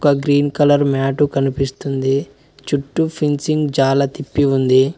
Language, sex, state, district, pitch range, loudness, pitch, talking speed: Telugu, male, Telangana, Mahabubabad, 135-145 Hz, -17 LUFS, 140 Hz, 110 wpm